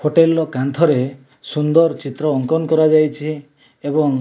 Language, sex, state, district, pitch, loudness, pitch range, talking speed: Odia, male, Odisha, Malkangiri, 150 Hz, -17 LUFS, 140-160 Hz, 130 wpm